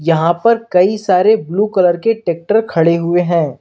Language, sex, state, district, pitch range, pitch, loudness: Hindi, male, Uttar Pradesh, Lalitpur, 170-215 Hz, 180 Hz, -14 LUFS